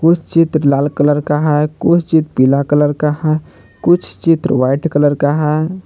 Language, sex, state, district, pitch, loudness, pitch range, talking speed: Hindi, male, Jharkhand, Palamu, 150 Hz, -14 LUFS, 145-165 Hz, 185 wpm